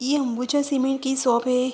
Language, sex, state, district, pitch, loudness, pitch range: Hindi, female, Uttar Pradesh, Hamirpur, 265 Hz, -23 LUFS, 250-270 Hz